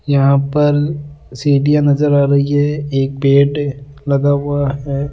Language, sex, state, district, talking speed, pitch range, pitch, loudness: Hindi, male, Rajasthan, Jaipur, 140 wpm, 140-145 Hz, 140 Hz, -15 LUFS